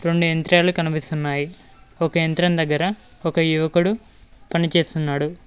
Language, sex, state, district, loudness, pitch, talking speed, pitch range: Telugu, male, Telangana, Mahabubabad, -21 LUFS, 165 Hz, 100 wpm, 155-175 Hz